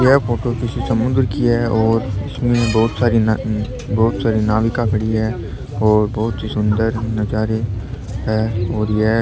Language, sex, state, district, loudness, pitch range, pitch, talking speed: Rajasthani, male, Rajasthan, Churu, -18 LUFS, 110-120 Hz, 110 Hz, 155 wpm